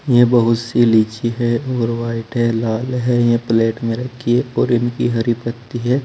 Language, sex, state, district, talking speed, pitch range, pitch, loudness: Hindi, male, Uttar Pradesh, Saharanpur, 190 wpm, 115-120 Hz, 120 Hz, -17 LUFS